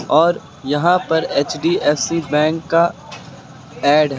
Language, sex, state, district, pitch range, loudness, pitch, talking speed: Hindi, male, Uttar Pradesh, Lucknow, 145-165 Hz, -17 LUFS, 150 Hz, 115 wpm